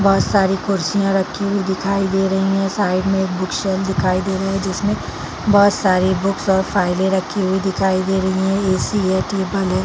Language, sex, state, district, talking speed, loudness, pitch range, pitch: Hindi, female, Chhattisgarh, Bilaspur, 205 wpm, -18 LUFS, 190-195 Hz, 190 Hz